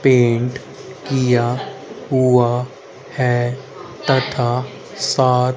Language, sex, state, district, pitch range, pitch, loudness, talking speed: Hindi, male, Haryana, Rohtak, 125-135 Hz, 130 Hz, -18 LUFS, 65 wpm